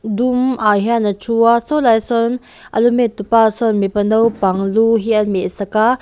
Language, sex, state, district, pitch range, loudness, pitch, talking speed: Mizo, female, Mizoram, Aizawl, 210-235 Hz, -15 LUFS, 225 Hz, 230 wpm